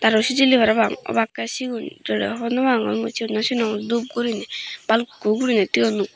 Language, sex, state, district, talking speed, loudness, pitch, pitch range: Chakma, female, Tripura, Dhalai, 165 wpm, -21 LUFS, 225 Hz, 220-240 Hz